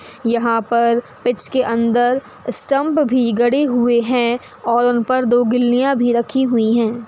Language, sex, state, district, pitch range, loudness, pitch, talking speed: Hindi, female, Uttar Pradesh, Hamirpur, 235-255 Hz, -16 LUFS, 240 Hz, 160 wpm